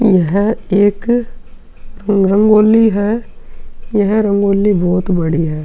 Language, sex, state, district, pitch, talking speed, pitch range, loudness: Hindi, male, Uttar Pradesh, Hamirpur, 205 Hz, 95 wpm, 190-215 Hz, -13 LUFS